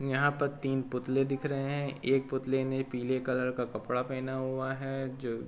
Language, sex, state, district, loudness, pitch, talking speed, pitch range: Hindi, male, Uttar Pradesh, Varanasi, -32 LUFS, 130 Hz, 220 wpm, 130-135 Hz